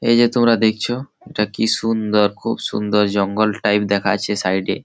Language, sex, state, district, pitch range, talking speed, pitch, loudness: Bengali, male, West Bengal, Malda, 100-115 Hz, 185 wpm, 105 Hz, -18 LUFS